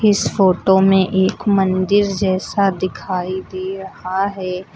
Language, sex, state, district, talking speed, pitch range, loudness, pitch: Hindi, female, Uttar Pradesh, Lucknow, 125 wpm, 185-195 Hz, -17 LUFS, 190 Hz